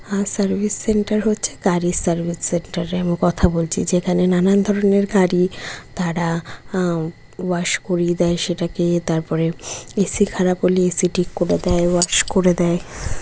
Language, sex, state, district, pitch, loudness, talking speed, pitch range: Bengali, female, West Bengal, North 24 Parganas, 180 Hz, -19 LUFS, 140 wpm, 175-190 Hz